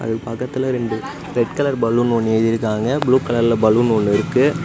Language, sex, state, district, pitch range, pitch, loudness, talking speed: Tamil, male, Tamil Nadu, Namakkal, 115-130 Hz, 115 Hz, -18 LUFS, 165 wpm